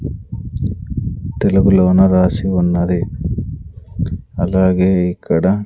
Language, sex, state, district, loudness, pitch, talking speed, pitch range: Telugu, male, Andhra Pradesh, Sri Satya Sai, -16 LUFS, 95 Hz, 55 wpm, 90-100 Hz